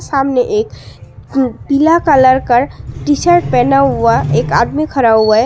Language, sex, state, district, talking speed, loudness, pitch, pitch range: Hindi, female, Assam, Sonitpur, 155 wpm, -12 LUFS, 270 Hz, 235-290 Hz